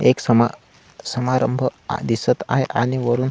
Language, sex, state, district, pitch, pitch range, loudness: Marathi, male, Maharashtra, Solapur, 125 Hz, 120-130 Hz, -20 LUFS